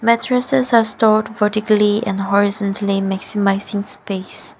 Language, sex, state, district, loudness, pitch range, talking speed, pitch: English, female, Nagaland, Dimapur, -17 LUFS, 200-220 Hz, 105 wpm, 210 Hz